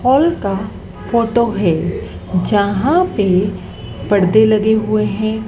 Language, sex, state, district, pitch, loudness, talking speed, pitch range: Hindi, female, Madhya Pradesh, Dhar, 215 Hz, -15 LUFS, 110 wpm, 200-230 Hz